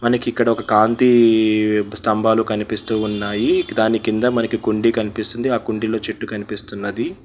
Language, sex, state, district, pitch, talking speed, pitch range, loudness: Telugu, male, Telangana, Hyderabad, 110 Hz, 130 wpm, 105-115 Hz, -18 LUFS